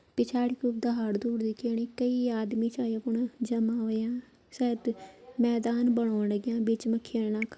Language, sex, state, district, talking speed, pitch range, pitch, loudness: Garhwali, female, Uttarakhand, Uttarkashi, 140 wpm, 225-240 Hz, 235 Hz, -30 LUFS